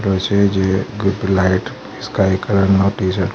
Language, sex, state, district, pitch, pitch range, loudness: Gujarati, male, Gujarat, Gandhinagar, 95 Hz, 95-100 Hz, -16 LUFS